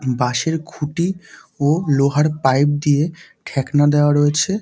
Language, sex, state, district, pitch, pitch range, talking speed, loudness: Bengali, male, West Bengal, Dakshin Dinajpur, 145 Hz, 140-160 Hz, 115 wpm, -18 LUFS